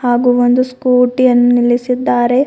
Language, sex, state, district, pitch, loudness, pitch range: Kannada, female, Karnataka, Bidar, 250 Hz, -12 LUFS, 245-255 Hz